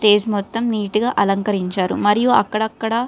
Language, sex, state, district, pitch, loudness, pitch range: Telugu, female, Telangana, Karimnagar, 210 Hz, -18 LUFS, 205-225 Hz